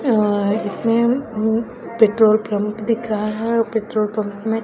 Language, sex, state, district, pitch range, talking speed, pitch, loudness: Hindi, female, Chhattisgarh, Raipur, 215-230 Hz, 140 wpm, 220 Hz, -19 LUFS